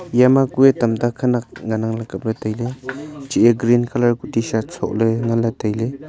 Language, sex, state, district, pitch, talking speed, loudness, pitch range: Wancho, male, Arunachal Pradesh, Longding, 120 Hz, 215 wpm, -18 LUFS, 115-130 Hz